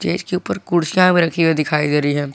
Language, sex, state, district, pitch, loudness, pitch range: Hindi, male, Jharkhand, Garhwa, 165 Hz, -17 LUFS, 150-180 Hz